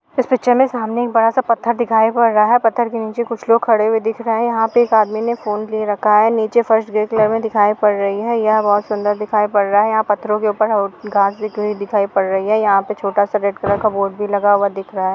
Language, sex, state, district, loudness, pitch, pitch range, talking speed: Hindi, female, Uttar Pradesh, Jalaun, -16 LUFS, 215 Hz, 205-225 Hz, 275 wpm